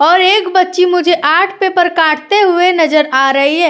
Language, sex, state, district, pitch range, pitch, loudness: Hindi, female, Uttar Pradesh, Etah, 310-370 Hz, 355 Hz, -10 LUFS